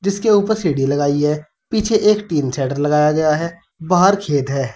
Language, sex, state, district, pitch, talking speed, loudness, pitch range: Hindi, male, Uttar Pradesh, Saharanpur, 155 Hz, 190 wpm, -17 LUFS, 145-200 Hz